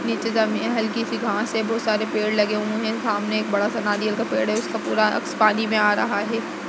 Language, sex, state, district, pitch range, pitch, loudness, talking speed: Hindi, female, Uttar Pradesh, Budaun, 210-225 Hz, 215 Hz, -22 LUFS, 260 wpm